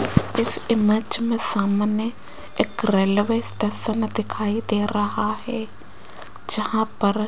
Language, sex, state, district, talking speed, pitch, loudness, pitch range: Hindi, female, Rajasthan, Jaipur, 115 wpm, 220 Hz, -23 LUFS, 210-225 Hz